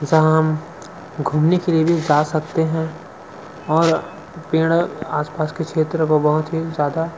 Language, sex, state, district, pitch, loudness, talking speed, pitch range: Hindi, male, Chhattisgarh, Sukma, 160 Hz, -19 LUFS, 150 wpm, 155-165 Hz